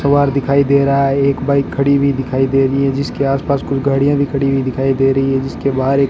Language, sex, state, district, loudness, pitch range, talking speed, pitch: Hindi, male, Rajasthan, Bikaner, -15 LUFS, 135-140 Hz, 265 wpm, 140 Hz